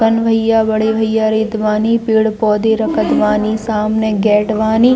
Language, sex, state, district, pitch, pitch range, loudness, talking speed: Hindi, female, Chhattisgarh, Bilaspur, 220 Hz, 215-225 Hz, -14 LUFS, 145 wpm